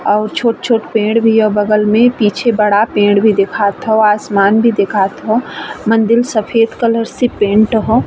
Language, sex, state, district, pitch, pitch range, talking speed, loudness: Bhojpuri, female, Uttar Pradesh, Ghazipur, 220 Hz, 210-230 Hz, 170 wpm, -12 LUFS